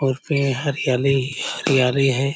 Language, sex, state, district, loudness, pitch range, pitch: Hindi, male, Chhattisgarh, Korba, -20 LUFS, 130-140 Hz, 135 Hz